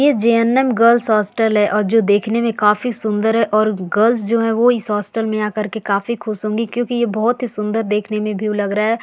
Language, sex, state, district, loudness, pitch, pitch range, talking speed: Hindi, female, Uttar Pradesh, Varanasi, -17 LUFS, 220 Hz, 210-230 Hz, 240 wpm